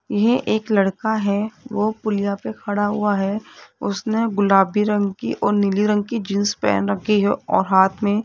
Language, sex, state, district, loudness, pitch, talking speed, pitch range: Hindi, female, Rajasthan, Jaipur, -20 LUFS, 205 Hz, 190 wpm, 200-215 Hz